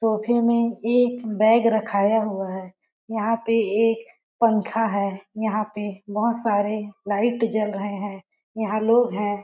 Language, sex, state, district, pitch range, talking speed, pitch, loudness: Hindi, female, Chhattisgarh, Balrampur, 205-230 Hz, 145 wpm, 220 Hz, -23 LUFS